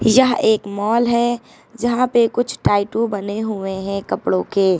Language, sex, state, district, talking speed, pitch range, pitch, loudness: Hindi, female, Uttar Pradesh, Lucknow, 160 wpm, 200-240 Hz, 220 Hz, -18 LUFS